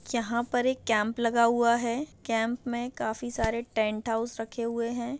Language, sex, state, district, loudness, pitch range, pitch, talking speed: Hindi, female, Andhra Pradesh, Visakhapatnam, -28 LUFS, 225-240 Hz, 235 Hz, 185 wpm